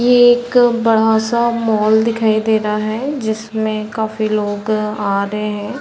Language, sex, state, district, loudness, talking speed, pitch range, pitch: Hindi, female, Chhattisgarh, Bilaspur, -16 LUFS, 165 wpm, 215-235 Hz, 220 Hz